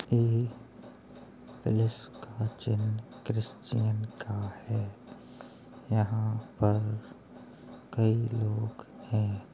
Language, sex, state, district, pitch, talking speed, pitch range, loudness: Hindi, male, Uttar Pradesh, Jalaun, 110 Hz, 75 wpm, 105-115 Hz, -31 LUFS